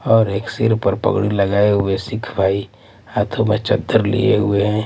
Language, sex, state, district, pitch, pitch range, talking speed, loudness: Hindi, male, Maharashtra, Mumbai Suburban, 105 Hz, 100-110 Hz, 185 wpm, -18 LUFS